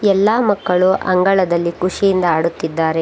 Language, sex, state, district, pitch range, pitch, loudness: Kannada, female, Karnataka, Bangalore, 170-195 Hz, 185 Hz, -16 LUFS